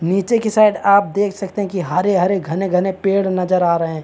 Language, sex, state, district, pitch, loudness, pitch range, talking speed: Hindi, male, Chhattisgarh, Bastar, 195 Hz, -17 LUFS, 180-200 Hz, 240 wpm